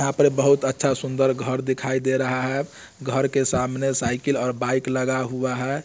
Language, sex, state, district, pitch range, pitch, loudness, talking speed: Hindi, male, Bihar, Muzaffarpur, 130-135 Hz, 130 Hz, -23 LUFS, 195 wpm